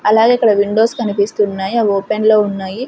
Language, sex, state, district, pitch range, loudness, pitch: Telugu, female, Andhra Pradesh, Sri Satya Sai, 200-225 Hz, -14 LUFS, 215 Hz